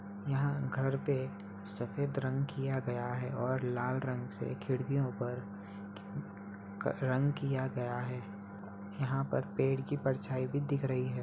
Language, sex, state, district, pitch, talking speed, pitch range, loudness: Hindi, male, Uttar Pradesh, Budaun, 125 Hz, 150 wpm, 100-135 Hz, -36 LUFS